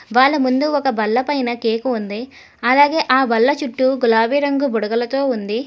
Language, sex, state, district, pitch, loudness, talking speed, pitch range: Telugu, female, Telangana, Hyderabad, 255 Hz, -17 LUFS, 160 wpm, 230-280 Hz